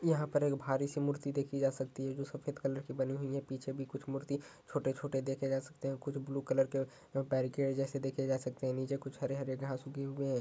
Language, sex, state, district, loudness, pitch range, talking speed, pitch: Hindi, male, Uttar Pradesh, Ghazipur, -37 LUFS, 135-140 Hz, 255 wpm, 135 Hz